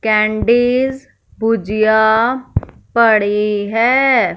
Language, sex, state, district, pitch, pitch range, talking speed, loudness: Hindi, female, Punjab, Fazilka, 225 Hz, 215-245 Hz, 55 wpm, -14 LUFS